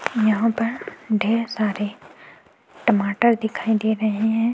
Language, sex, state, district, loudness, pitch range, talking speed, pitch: Hindi, female, Goa, North and South Goa, -21 LUFS, 215-230 Hz, 120 wpm, 220 Hz